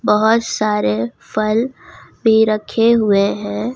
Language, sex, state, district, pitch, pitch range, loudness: Hindi, female, Jharkhand, Ranchi, 215 Hz, 205-225 Hz, -16 LUFS